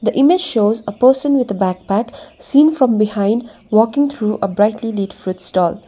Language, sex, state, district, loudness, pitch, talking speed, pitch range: English, female, Sikkim, Gangtok, -16 LUFS, 215 Hz, 185 wpm, 200-255 Hz